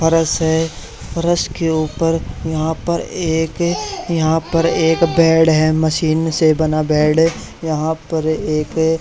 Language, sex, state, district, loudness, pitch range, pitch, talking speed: Hindi, male, Haryana, Charkhi Dadri, -17 LUFS, 155-165 Hz, 160 Hz, 140 wpm